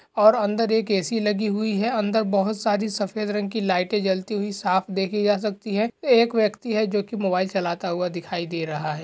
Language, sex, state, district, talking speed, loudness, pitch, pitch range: Hindi, male, Uttar Pradesh, Jalaun, 220 wpm, -23 LUFS, 205 Hz, 190-215 Hz